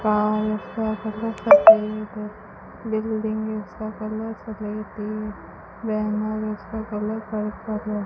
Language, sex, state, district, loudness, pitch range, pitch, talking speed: Hindi, female, Rajasthan, Bikaner, -23 LUFS, 210-220 Hz, 215 Hz, 120 wpm